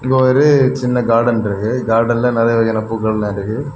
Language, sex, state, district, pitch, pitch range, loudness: Tamil, male, Tamil Nadu, Kanyakumari, 115 Hz, 110-130 Hz, -15 LUFS